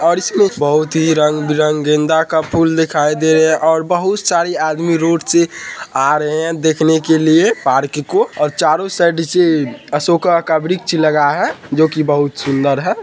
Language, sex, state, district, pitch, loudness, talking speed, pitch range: Hindi, male, Bihar, Madhepura, 160 Hz, -14 LUFS, 190 wpm, 150-170 Hz